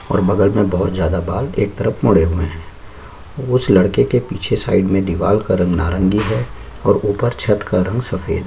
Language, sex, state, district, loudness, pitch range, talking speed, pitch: Hindi, male, Chhattisgarh, Sukma, -17 LUFS, 90-105 Hz, 205 wpm, 100 Hz